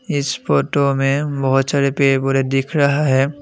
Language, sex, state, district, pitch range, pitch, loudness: Hindi, male, Assam, Sonitpur, 135-145 Hz, 140 Hz, -17 LUFS